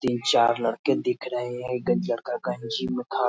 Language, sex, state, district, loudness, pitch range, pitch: Hindi, male, Bihar, Muzaffarpur, -26 LUFS, 115-125 Hz, 120 Hz